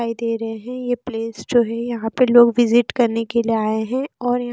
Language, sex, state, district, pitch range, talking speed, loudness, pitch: Hindi, female, Himachal Pradesh, Shimla, 230-245 Hz, 240 wpm, -19 LUFS, 235 Hz